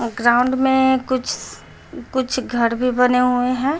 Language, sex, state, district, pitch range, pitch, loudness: Hindi, female, Bihar, Patna, 245-260 Hz, 250 Hz, -18 LUFS